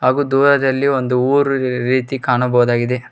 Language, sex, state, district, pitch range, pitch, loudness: Kannada, male, Karnataka, Koppal, 125-135 Hz, 130 Hz, -16 LUFS